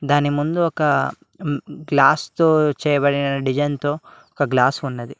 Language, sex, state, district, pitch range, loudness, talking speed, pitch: Telugu, male, Telangana, Mahabubabad, 140-150 Hz, -19 LUFS, 125 wpm, 145 Hz